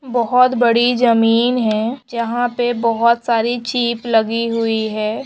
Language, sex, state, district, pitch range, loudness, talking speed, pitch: Hindi, female, Andhra Pradesh, Chittoor, 230-245 Hz, -16 LUFS, 150 wpm, 235 Hz